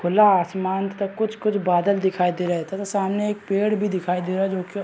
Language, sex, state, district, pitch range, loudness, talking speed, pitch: Hindi, male, Chhattisgarh, Raigarh, 180-205 Hz, -22 LUFS, 235 wpm, 195 Hz